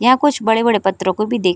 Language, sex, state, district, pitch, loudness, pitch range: Hindi, female, Bihar, Sitamarhi, 225 Hz, -16 LUFS, 195-240 Hz